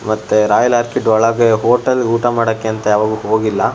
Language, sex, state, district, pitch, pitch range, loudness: Kannada, male, Karnataka, Shimoga, 110 Hz, 110-120 Hz, -14 LUFS